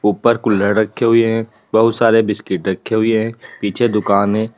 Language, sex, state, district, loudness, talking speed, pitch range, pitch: Hindi, male, Uttar Pradesh, Lalitpur, -16 LUFS, 185 wpm, 105-115 Hz, 110 Hz